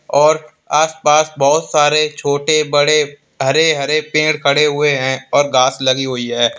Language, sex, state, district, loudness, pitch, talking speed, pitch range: Hindi, male, Uttar Pradesh, Lalitpur, -14 LUFS, 150 Hz, 165 wpm, 135-155 Hz